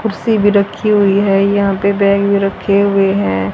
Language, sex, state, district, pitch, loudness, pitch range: Hindi, female, Haryana, Jhajjar, 200 Hz, -13 LUFS, 195-200 Hz